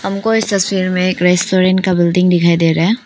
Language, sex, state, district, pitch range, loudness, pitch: Hindi, female, Arunachal Pradesh, Papum Pare, 180-195 Hz, -13 LUFS, 185 Hz